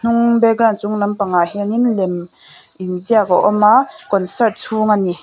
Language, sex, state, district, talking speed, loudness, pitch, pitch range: Mizo, female, Mizoram, Aizawl, 160 wpm, -15 LUFS, 210 Hz, 190-230 Hz